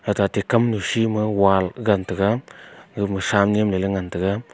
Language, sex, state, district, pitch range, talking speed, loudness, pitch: Wancho, male, Arunachal Pradesh, Longding, 95-105 Hz, 210 wpm, -21 LUFS, 100 Hz